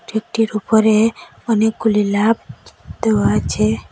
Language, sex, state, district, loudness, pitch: Bengali, female, Assam, Hailakandi, -17 LUFS, 215 Hz